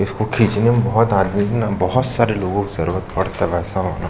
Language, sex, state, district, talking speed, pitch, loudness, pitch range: Hindi, male, Chhattisgarh, Jashpur, 250 wpm, 100 Hz, -18 LUFS, 95-115 Hz